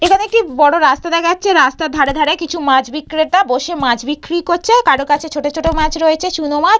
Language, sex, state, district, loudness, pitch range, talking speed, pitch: Bengali, female, West Bengal, Purulia, -14 LUFS, 290-345 Hz, 210 wpm, 315 Hz